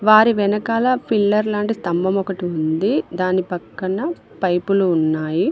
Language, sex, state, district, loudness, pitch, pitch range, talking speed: Telugu, female, Telangana, Mahabubabad, -19 LUFS, 195 Hz, 180-215 Hz, 120 wpm